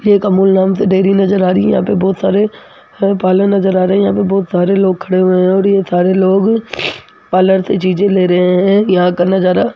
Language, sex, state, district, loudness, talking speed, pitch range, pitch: Hindi, female, Rajasthan, Jaipur, -12 LUFS, 245 wpm, 185-195 Hz, 190 Hz